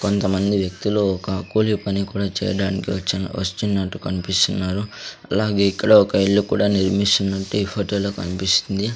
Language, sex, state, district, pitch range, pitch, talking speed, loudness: Telugu, male, Andhra Pradesh, Sri Satya Sai, 95-100 Hz, 100 Hz, 135 wpm, -20 LUFS